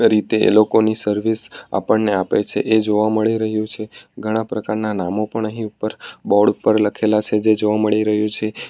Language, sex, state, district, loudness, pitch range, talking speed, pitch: Gujarati, male, Gujarat, Valsad, -18 LUFS, 105-110 Hz, 185 wpm, 110 Hz